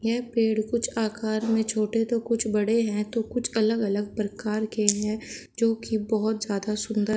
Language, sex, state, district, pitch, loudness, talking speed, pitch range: Hindi, female, Uttar Pradesh, Shamli, 220 Hz, -26 LUFS, 185 wpm, 215-225 Hz